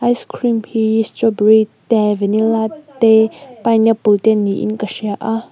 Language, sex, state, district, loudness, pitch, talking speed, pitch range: Mizo, female, Mizoram, Aizawl, -15 LUFS, 220 Hz, 140 wpm, 215-230 Hz